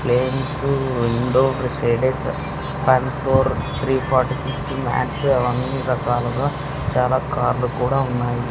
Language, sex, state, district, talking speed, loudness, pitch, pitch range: Telugu, male, Andhra Pradesh, Sri Satya Sai, 40 wpm, -20 LUFS, 130 Hz, 125-135 Hz